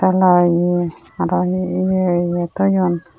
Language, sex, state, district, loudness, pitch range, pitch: Chakma, female, Tripura, Unakoti, -17 LUFS, 175-185 Hz, 180 Hz